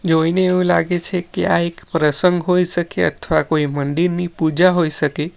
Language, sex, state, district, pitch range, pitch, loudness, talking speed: Gujarati, male, Gujarat, Valsad, 155-180 Hz, 175 Hz, -17 LUFS, 180 wpm